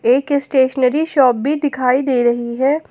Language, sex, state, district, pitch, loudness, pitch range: Hindi, female, Jharkhand, Ranchi, 265 Hz, -16 LUFS, 250-285 Hz